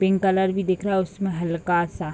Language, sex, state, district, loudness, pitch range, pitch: Hindi, female, Bihar, Bhagalpur, -23 LUFS, 175-190 Hz, 190 Hz